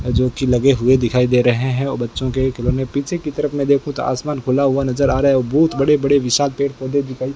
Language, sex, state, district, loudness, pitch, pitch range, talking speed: Hindi, male, Rajasthan, Bikaner, -17 LUFS, 135 Hz, 130-140 Hz, 270 wpm